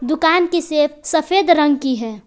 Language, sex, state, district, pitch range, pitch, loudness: Hindi, female, Jharkhand, Palamu, 285-340 Hz, 305 Hz, -16 LUFS